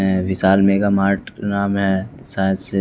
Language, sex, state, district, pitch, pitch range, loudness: Hindi, male, Bihar, West Champaran, 95 Hz, 95-100 Hz, -18 LUFS